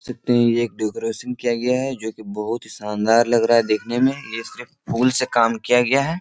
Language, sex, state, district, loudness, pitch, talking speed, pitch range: Hindi, male, Bihar, Supaul, -20 LUFS, 120 Hz, 260 wpm, 115-125 Hz